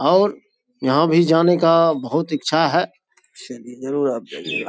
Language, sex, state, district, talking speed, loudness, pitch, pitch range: Hindi, male, Bihar, Saharsa, 115 wpm, -18 LUFS, 165 Hz, 135-170 Hz